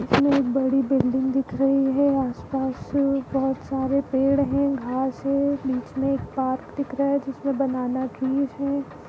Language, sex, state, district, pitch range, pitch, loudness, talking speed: Hindi, female, Chhattisgarh, Bilaspur, 265-275 Hz, 270 Hz, -24 LUFS, 180 wpm